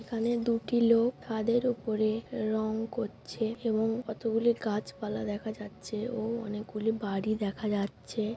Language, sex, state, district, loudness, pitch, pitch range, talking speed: Bengali, female, West Bengal, Jhargram, -31 LUFS, 220 Hz, 215-230 Hz, 120 wpm